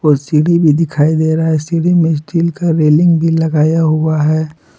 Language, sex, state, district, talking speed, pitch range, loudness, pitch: Hindi, male, Jharkhand, Palamu, 200 wpm, 155-165 Hz, -12 LUFS, 160 Hz